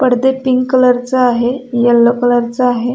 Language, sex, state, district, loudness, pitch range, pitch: Marathi, female, Maharashtra, Sindhudurg, -12 LUFS, 240-255 Hz, 245 Hz